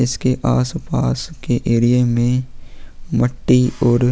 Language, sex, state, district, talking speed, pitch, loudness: Hindi, male, Chhattisgarh, Sukma, 130 wpm, 120 Hz, -17 LUFS